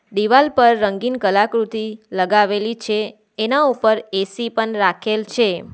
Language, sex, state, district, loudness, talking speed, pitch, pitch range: Gujarati, female, Gujarat, Valsad, -18 LUFS, 125 wpm, 215 Hz, 205-230 Hz